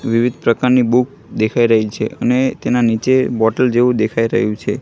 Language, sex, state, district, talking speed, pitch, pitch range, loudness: Gujarati, male, Gujarat, Gandhinagar, 175 wpm, 120 Hz, 115-125 Hz, -15 LUFS